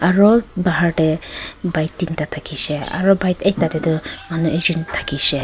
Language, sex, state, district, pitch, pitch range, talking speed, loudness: Nagamese, female, Nagaland, Kohima, 165 Hz, 160-185 Hz, 155 wpm, -17 LUFS